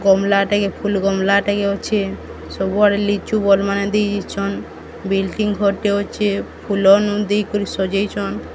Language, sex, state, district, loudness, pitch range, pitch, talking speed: Odia, female, Odisha, Sambalpur, -18 LUFS, 195-205 Hz, 200 Hz, 145 wpm